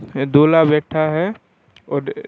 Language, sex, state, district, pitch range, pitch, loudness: Rajasthani, male, Rajasthan, Churu, 150-175 Hz, 155 Hz, -16 LUFS